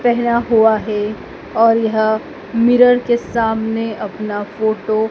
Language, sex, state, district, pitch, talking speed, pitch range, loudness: Hindi, female, Madhya Pradesh, Dhar, 220 Hz, 130 wpm, 215-235 Hz, -16 LUFS